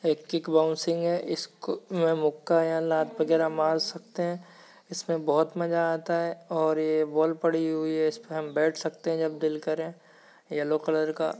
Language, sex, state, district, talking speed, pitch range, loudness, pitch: Hindi, female, Maharashtra, Nagpur, 180 wpm, 155-170 Hz, -27 LUFS, 160 Hz